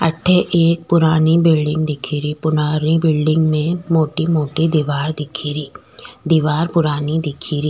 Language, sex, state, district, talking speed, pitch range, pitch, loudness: Rajasthani, female, Rajasthan, Nagaur, 140 wpm, 150-165 Hz, 155 Hz, -17 LUFS